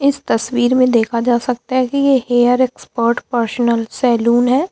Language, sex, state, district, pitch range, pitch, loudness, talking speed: Hindi, female, Bihar, Lakhisarai, 235-255 Hz, 245 Hz, -15 LUFS, 180 wpm